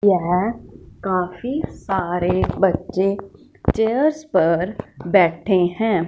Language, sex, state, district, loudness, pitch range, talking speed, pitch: Hindi, female, Punjab, Fazilka, -20 LUFS, 175-220 Hz, 80 wpm, 190 Hz